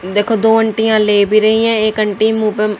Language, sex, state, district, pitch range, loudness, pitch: Hindi, female, Haryana, Jhajjar, 210-220 Hz, -13 LUFS, 215 Hz